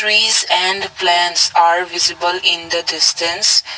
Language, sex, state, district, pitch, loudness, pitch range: English, male, Assam, Kamrup Metropolitan, 175 Hz, -13 LUFS, 170-185 Hz